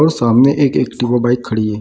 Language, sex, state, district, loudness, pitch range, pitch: Hindi, male, Bihar, Samastipur, -14 LUFS, 115-140 Hz, 120 Hz